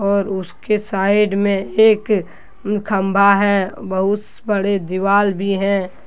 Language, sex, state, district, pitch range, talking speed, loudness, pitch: Hindi, male, Jharkhand, Deoghar, 195-205 Hz, 130 wpm, -17 LUFS, 200 Hz